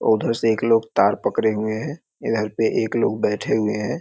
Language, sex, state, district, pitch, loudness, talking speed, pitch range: Hindi, male, Bihar, Muzaffarpur, 110 Hz, -21 LUFS, 225 wpm, 105-115 Hz